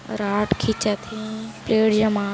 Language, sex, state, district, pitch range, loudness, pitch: Hindi, male, Chhattisgarh, Kabirdham, 205-220 Hz, -22 LUFS, 215 Hz